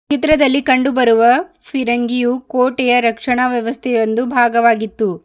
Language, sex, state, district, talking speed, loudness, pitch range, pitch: Kannada, female, Karnataka, Bidar, 105 wpm, -15 LUFS, 235-260 Hz, 245 Hz